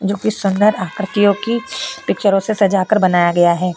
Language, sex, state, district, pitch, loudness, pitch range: Hindi, female, Uttar Pradesh, Etah, 200 Hz, -16 LUFS, 185-215 Hz